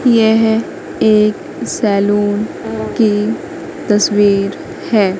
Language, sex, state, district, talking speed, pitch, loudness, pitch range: Hindi, female, Madhya Pradesh, Katni, 70 wpm, 210 Hz, -14 LUFS, 205-220 Hz